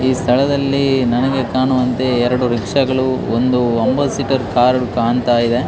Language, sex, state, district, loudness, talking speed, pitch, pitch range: Kannada, male, Karnataka, Dakshina Kannada, -16 LUFS, 115 wpm, 130 Hz, 120-130 Hz